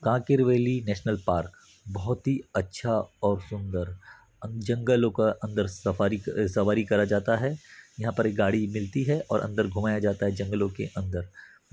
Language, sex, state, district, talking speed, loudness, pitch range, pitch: Hindi, male, Chhattisgarh, Bastar, 165 wpm, -27 LUFS, 100-115 Hz, 105 Hz